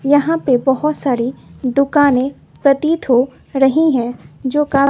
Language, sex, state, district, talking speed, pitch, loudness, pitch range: Hindi, female, Bihar, West Champaran, 135 wpm, 275 Hz, -16 LUFS, 255-290 Hz